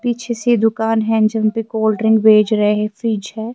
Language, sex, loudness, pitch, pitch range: Urdu, female, -16 LUFS, 220 Hz, 215-225 Hz